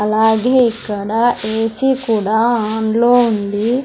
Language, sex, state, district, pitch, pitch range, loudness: Telugu, female, Andhra Pradesh, Sri Satya Sai, 225 Hz, 215-240 Hz, -15 LUFS